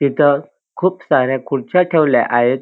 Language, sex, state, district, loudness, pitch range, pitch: Marathi, male, Maharashtra, Dhule, -16 LUFS, 135-170 Hz, 140 Hz